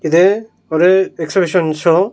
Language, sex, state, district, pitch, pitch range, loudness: Tamil, male, Tamil Nadu, Nilgiris, 180 Hz, 165-190 Hz, -14 LUFS